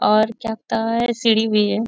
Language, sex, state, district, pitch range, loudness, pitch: Hindi, female, Bihar, Bhagalpur, 215-230 Hz, -19 LUFS, 225 Hz